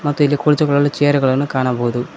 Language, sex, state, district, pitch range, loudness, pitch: Kannada, male, Karnataka, Koppal, 130-145 Hz, -16 LUFS, 145 Hz